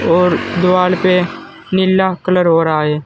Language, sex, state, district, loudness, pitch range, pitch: Hindi, male, Uttar Pradesh, Saharanpur, -14 LUFS, 165-185 Hz, 180 Hz